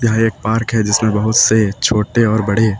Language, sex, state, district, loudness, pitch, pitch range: Hindi, male, Uttar Pradesh, Lucknow, -14 LUFS, 110 Hz, 105-115 Hz